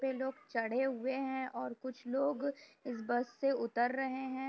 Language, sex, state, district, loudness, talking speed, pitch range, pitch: Hindi, female, Uttar Pradesh, Jyotiba Phule Nagar, -37 LUFS, 185 wpm, 245-270 Hz, 265 Hz